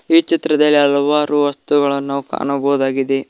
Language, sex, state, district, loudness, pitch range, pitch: Kannada, male, Karnataka, Koppal, -16 LUFS, 140-150 Hz, 140 Hz